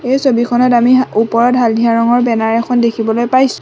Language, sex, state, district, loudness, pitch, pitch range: Assamese, female, Assam, Sonitpur, -12 LUFS, 240 Hz, 230-250 Hz